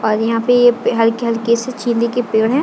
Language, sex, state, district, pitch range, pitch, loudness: Hindi, female, Chhattisgarh, Bilaspur, 230-245 Hz, 235 Hz, -15 LUFS